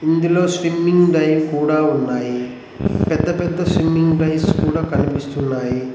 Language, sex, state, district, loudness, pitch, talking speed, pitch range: Telugu, male, Telangana, Mahabubabad, -17 LUFS, 155 Hz, 110 wpm, 140-170 Hz